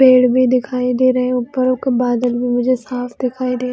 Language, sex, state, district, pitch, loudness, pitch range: Hindi, female, Chhattisgarh, Bilaspur, 250 Hz, -16 LUFS, 250-255 Hz